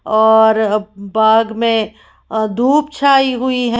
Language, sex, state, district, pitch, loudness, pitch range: Hindi, female, Haryana, Jhajjar, 220 Hz, -14 LUFS, 220-255 Hz